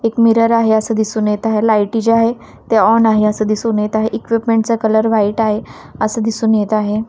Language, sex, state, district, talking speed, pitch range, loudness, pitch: Marathi, female, Maharashtra, Washim, 220 wpm, 215-230 Hz, -14 LUFS, 220 Hz